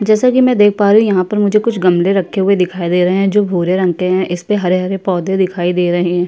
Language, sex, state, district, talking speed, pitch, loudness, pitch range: Hindi, female, Uttar Pradesh, Jyotiba Phule Nagar, 295 wpm, 190 Hz, -13 LUFS, 180-205 Hz